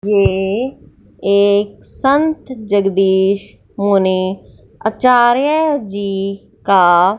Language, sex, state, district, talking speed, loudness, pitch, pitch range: Hindi, female, Punjab, Fazilka, 65 wpm, -15 LUFS, 200 Hz, 195-245 Hz